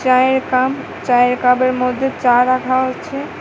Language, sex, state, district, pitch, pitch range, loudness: Bengali, female, Tripura, West Tripura, 255 Hz, 250-260 Hz, -16 LUFS